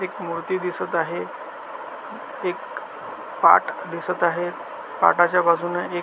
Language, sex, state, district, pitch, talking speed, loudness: Marathi, male, Maharashtra, Solapur, 190 Hz, 120 wpm, -22 LUFS